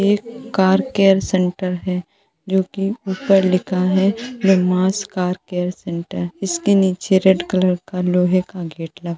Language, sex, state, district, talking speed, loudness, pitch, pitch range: Hindi, female, Uttar Pradesh, Jalaun, 150 wpm, -18 LUFS, 185 Hz, 180-195 Hz